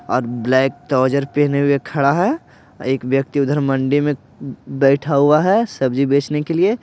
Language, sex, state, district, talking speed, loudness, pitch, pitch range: Hindi, male, Bihar, Patna, 165 wpm, -17 LUFS, 140 Hz, 135-150 Hz